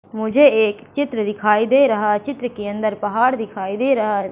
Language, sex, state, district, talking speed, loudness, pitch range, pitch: Hindi, female, Madhya Pradesh, Katni, 195 wpm, -18 LUFS, 210-255 Hz, 220 Hz